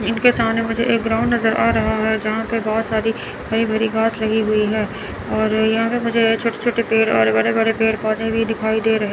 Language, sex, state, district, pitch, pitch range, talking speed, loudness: Hindi, male, Chandigarh, Chandigarh, 225 Hz, 220-225 Hz, 230 wpm, -18 LUFS